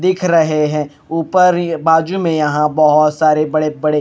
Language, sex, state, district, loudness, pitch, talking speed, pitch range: Hindi, male, Punjab, Kapurthala, -14 LUFS, 155 Hz, 210 wpm, 150-165 Hz